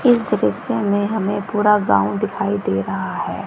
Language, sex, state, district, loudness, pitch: Hindi, female, Bihar, West Champaran, -19 LUFS, 205 Hz